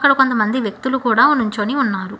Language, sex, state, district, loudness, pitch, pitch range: Telugu, female, Telangana, Hyderabad, -16 LUFS, 250 Hz, 215-265 Hz